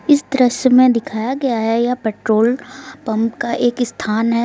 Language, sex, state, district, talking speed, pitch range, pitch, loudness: Hindi, female, Uttar Pradesh, Lucknow, 175 wpm, 225-255 Hz, 240 Hz, -17 LUFS